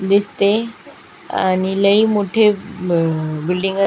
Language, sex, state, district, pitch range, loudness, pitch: Marathi, female, Maharashtra, Aurangabad, 185-205 Hz, -17 LUFS, 195 Hz